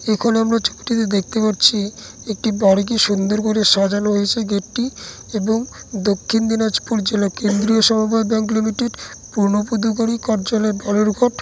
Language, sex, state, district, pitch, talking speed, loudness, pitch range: Bengali, male, West Bengal, Dakshin Dinajpur, 220 Hz, 120 wpm, -18 LUFS, 205-225 Hz